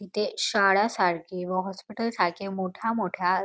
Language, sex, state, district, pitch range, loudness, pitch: Marathi, female, Maharashtra, Dhule, 185-210 Hz, -26 LUFS, 195 Hz